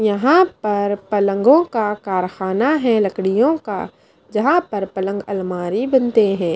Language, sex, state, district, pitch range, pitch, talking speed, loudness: Hindi, female, Bihar, Kaimur, 195-245 Hz, 210 Hz, 130 wpm, -18 LUFS